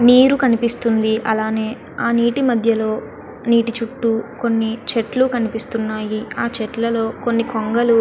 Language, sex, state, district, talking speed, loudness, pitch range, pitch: Telugu, female, Andhra Pradesh, Guntur, 120 wpm, -19 LUFS, 225-235 Hz, 230 Hz